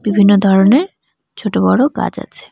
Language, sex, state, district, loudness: Bengali, female, West Bengal, Cooch Behar, -13 LUFS